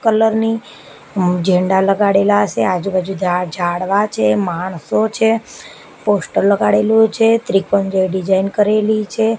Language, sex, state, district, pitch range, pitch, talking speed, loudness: Gujarati, female, Gujarat, Gandhinagar, 185-220 Hz, 200 Hz, 120 wpm, -15 LUFS